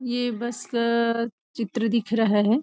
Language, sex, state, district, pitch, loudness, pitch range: Hindi, female, Chhattisgarh, Rajnandgaon, 230 Hz, -25 LUFS, 230-240 Hz